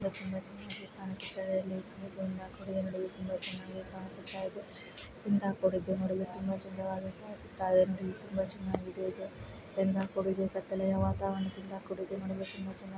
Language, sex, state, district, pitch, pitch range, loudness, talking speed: Kannada, female, Karnataka, Belgaum, 190 Hz, 190-195 Hz, -36 LUFS, 155 wpm